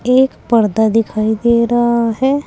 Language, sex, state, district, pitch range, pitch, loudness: Hindi, female, Uttar Pradesh, Saharanpur, 225-250 Hz, 235 Hz, -14 LUFS